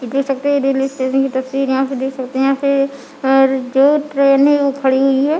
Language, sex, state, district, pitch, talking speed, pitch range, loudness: Hindi, female, Chhattisgarh, Bilaspur, 270 Hz, 245 wpm, 265-275 Hz, -15 LUFS